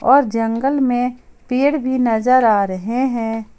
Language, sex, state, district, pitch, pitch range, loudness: Hindi, female, Jharkhand, Ranchi, 245 Hz, 225-260 Hz, -17 LUFS